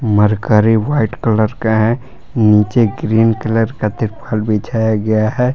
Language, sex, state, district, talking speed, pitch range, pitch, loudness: Hindi, male, Jharkhand, Palamu, 140 wpm, 110-115 Hz, 110 Hz, -15 LUFS